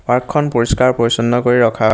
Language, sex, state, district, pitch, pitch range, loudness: Assamese, male, Assam, Hailakandi, 120 Hz, 115-125 Hz, -14 LUFS